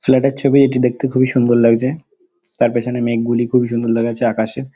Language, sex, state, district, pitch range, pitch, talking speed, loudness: Bengali, male, West Bengal, Dakshin Dinajpur, 120-135 Hz, 125 Hz, 200 wpm, -16 LUFS